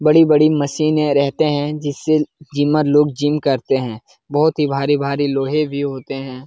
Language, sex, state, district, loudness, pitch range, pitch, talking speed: Hindi, male, Uttar Pradesh, Jalaun, -17 LUFS, 140-155 Hz, 145 Hz, 165 wpm